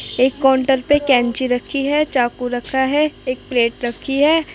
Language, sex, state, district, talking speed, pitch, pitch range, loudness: Hindi, female, Uttar Pradesh, Muzaffarnagar, 185 wpm, 265 Hz, 245-285 Hz, -17 LUFS